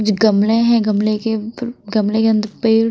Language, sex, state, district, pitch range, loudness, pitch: Hindi, female, Punjab, Kapurthala, 215-225 Hz, -16 LUFS, 220 Hz